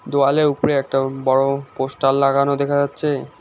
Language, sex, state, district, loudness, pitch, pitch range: Bengali, male, West Bengal, Alipurduar, -18 LUFS, 140 Hz, 135-140 Hz